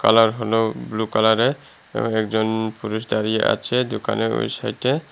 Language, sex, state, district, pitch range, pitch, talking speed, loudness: Bengali, male, Tripura, Unakoti, 110-115 Hz, 110 Hz, 150 wpm, -21 LUFS